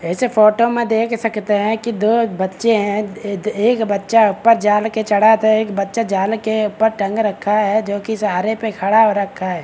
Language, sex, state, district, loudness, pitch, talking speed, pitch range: Hindi, male, Bihar, Begusarai, -16 LUFS, 215 Hz, 205 wpm, 205-225 Hz